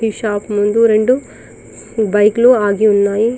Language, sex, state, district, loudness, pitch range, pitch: Telugu, female, Telangana, Karimnagar, -13 LUFS, 205-230 Hz, 215 Hz